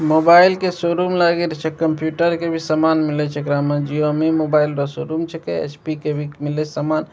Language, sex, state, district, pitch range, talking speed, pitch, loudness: Maithili, male, Bihar, Begusarai, 150-165 Hz, 210 wpm, 155 Hz, -18 LUFS